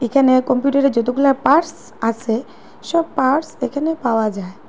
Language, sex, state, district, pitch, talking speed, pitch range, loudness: Bengali, female, Assam, Hailakandi, 260 Hz, 130 wpm, 230-280 Hz, -17 LUFS